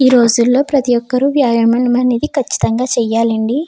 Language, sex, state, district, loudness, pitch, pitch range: Telugu, female, Andhra Pradesh, Chittoor, -13 LUFS, 245 Hz, 235-270 Hz